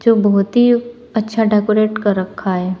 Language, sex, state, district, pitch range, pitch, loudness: Hindi, female, Uttar Pradesh, Saharanpur, 200-230 Hz, 215 Hz, -16 LUFS